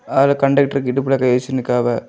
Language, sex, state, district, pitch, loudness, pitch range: Tamil, male, Tamil Nadu, Kanyakumari, 135 Hz, -17 LUFS, 125-140 Hz